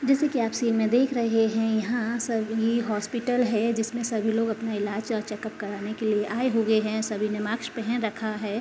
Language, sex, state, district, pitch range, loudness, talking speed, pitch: Hindi, female, Uttar Pradesh, Hamirpur, 215-235 Hz, -26 LUFS, 230 wpm, 225 Hz